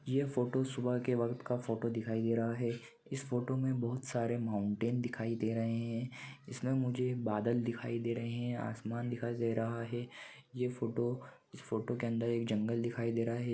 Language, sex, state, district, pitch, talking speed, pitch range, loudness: Hindi, male, Chhattisgarh, Bilaspur, 120 Hz, 205 wpm, 115-125 Hz, -36 LUFS